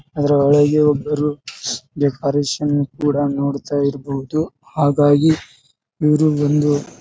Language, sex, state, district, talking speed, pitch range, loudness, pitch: Kannada, male, Karnataka, Bijapur, 85 wpm, 140-150 Hz, -18 LUFS, 145 Hz